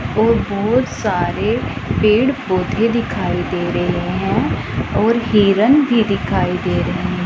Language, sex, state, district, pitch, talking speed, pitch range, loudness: Hindi, female, Punjab, Pathankot, 225 Hz, 130 wpm, 205-235 Hz, -17 LUFS